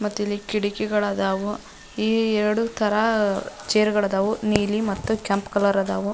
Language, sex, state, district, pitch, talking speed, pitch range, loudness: Kannada, female, Karnataka, Dharwad, 210 Hz, 105 wpm, 200-215 Hz, -23 LUFS